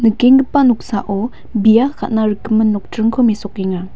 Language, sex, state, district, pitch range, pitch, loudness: Garo, female, Meghalaya, West Garo Hills, 205-235 Hz, 220 Hz, -15 LUFS